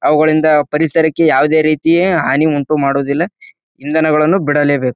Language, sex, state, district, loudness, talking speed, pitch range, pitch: Kannada, male, Karnataka, Bijapur, -13 LUFS, 110 wpm, 145-160 Hz, 155 Hz